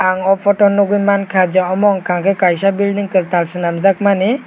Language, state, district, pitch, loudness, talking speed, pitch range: Kokborok, Tripura, West Tripura, 195 Hz, -14 LUFS, 160 wpm, 185-200 Hz